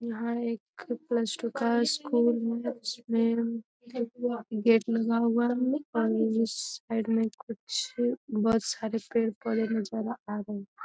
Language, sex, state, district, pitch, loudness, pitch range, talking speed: Hindi, female, Bihar, Jamui, 230 Hz, -29 LUFS, 225-240 Hz, 115 wpm